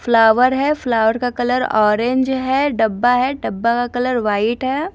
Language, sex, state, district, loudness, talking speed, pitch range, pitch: Hindi, female, Bihar, West Champaran, -17 LUFS, 170 wpm, 225-260 Hz, 245 Hz